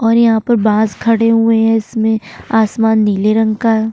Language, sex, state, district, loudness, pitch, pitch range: Hindi, female, Chhattisgarh, Bastar, -13 LUFS, 225 Hz, 220-225 Hz